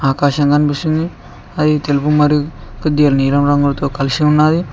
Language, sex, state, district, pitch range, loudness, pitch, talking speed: Telugu, male, Telangana, Mahabubabad, 140-150 Hz, -14 LUFS, 145 Hz, 100 wpm